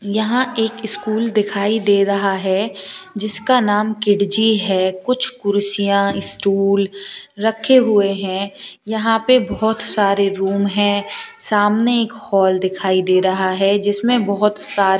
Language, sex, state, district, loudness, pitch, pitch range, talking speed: Hindi, female, Uttar Pradesh, Lalitpur, -17 LUFS, 205 Hz, 195-220 Hz, 135 wpm